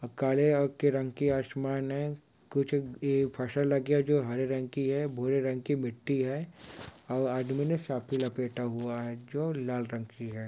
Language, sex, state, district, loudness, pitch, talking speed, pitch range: Hindi, male, Bihar, Sitamarhi, -31 LUFS, 135 Hz, 195 wpm, 125-145 Hz